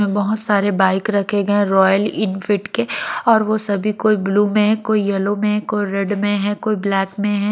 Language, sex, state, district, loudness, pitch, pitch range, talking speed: Hindi, female, Maharashtra, Mumbai Suburban, -18 LUFS, 205 Hz, 200-210 Hz, 200 wpm